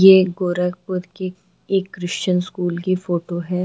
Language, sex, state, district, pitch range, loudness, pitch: Hindi, female, Uttar Pradesh, Gorakhpur, 180-185 Hz, -21 LUFS, 180 Hz